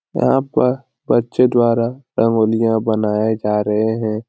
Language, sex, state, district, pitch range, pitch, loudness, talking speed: Hindi, male, Bihar, Lakhisarai, 110-120 Hz, 115 Hz, -17 LUFS, 125 wpm